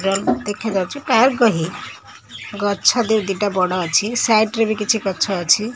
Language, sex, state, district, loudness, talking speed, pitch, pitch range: Odia, female, Odisha, Khordha, -18 LUFS, 145 wpm, 205 Hz, 195-220 Hz